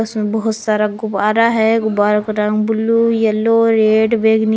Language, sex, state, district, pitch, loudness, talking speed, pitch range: Hindi, female, Jharkhand, Palamu, 220 Hz, -15 LUFS, 160 wpm, 215-225 Hz